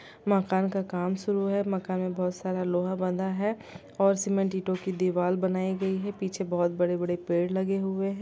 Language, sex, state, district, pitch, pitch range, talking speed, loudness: Hindi, female, Chhattisgarh, Bilaspur, 190 Hz, 180-195 Hz, 195 wpm, -28 LUFS